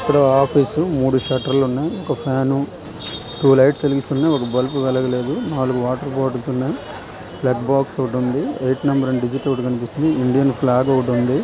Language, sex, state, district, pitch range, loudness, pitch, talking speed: Telugu, male, Andhra Pradesh, Visakhapatnam, 125-140 Hz, -19 LUFS, 135 Hz, 150 wpm